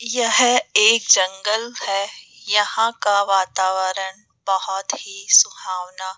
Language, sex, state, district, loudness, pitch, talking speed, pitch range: Hindi, female, Rajasthan, Jaipur, -18 LUFS, 205 Hz, 105 wpm, 190-230 Hz